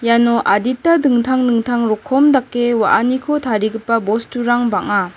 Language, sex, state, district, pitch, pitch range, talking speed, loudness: Garo, female, Meghalaya, West Garo Hills, 240 Hz, 225-255 Hz, 115 wpm, -15 LUFS